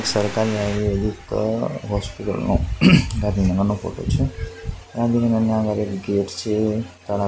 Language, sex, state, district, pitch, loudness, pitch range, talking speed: Gujarati, male, Gujarat, Gandhinagar, 105 Hz, -21 LUFS, 100-110 Hz, 105 wpm